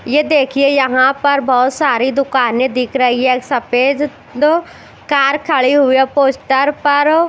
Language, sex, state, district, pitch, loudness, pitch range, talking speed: Hindi, female, Chandigarh, Chandigarh, 275 Hz, -13 LUFS, 255-290 Hz, 155 wpm